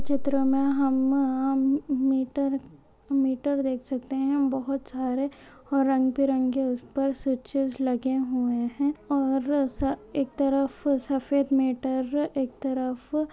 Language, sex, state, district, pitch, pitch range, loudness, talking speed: Hindi, female, Chhattisgarh, Bastar, 270 Hz, 260-275 Hz, -26 LUFS, 120 wpm